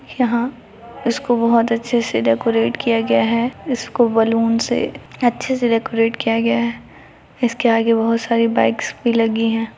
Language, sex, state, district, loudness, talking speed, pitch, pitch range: Hindi, female, Bihar, Muzaffarpur, -18 LUFS, 160 wpm, 230 Hz, 225-235 Hz